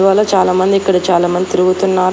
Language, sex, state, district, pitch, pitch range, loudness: Telugu, female, Andhra Pradesh, Annamaya, 185 Hz, 185-195 Hz, -13 LUFS